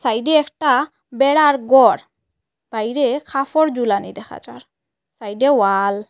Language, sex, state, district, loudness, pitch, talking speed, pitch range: Bengali, female, Assam, Hailakandi, -16 LUFS, 270 Hz, 120 wpm, 225-290 Hz